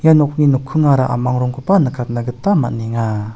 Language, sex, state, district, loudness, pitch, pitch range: Garo, male, Meghalaya, South Garo Hills, -16 LUFS, 130 Hz, 120-150 Hz